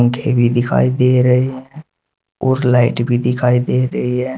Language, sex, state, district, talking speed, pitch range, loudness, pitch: Hindi, male, Uttar Pradesh, Shamli, 165 wpm, 120-130 Hz, -15 LUFS, 125 Hz